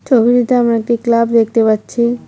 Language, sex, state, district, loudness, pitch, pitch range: Bengali, female, West Bengal, Cooch Behar, -13 LUFS, 235 Hz, 230-240 Hz